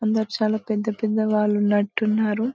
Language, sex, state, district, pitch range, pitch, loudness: Telugu, female, Telangana, Karimnagar, 210-220 Hz, 215 Hz, -22 LUFS